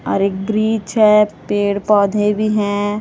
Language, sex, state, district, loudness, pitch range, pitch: Hindi, female, Chhattisgarh, Raipur, -16 LUFS, 200-215 Hz, 210 Hz